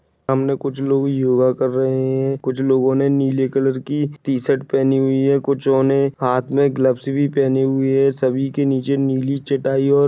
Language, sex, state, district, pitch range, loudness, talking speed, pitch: Hindi, male, Maharashtra, Dhule, 130-140 Hz, -18 LUFS, 190 wpm, 135 Hz